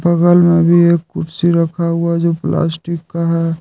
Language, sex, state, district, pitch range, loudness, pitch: Hindi, male, Jharkhand, Deoghar, 165-170 Hz, -14 LUFS, 170 Hz